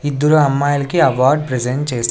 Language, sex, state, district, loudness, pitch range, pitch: Telugu, male, Andhra Pradesh, Sri Satya Sai, -15 LUFS, 130-150 Hz, 140 Hz